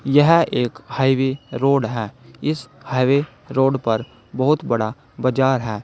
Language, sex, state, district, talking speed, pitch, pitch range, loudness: Hindi, male, Uttar Pradesh, Saharanpur, 135 wpm, 130 Hz, 120-140 Hz, -20 LUFS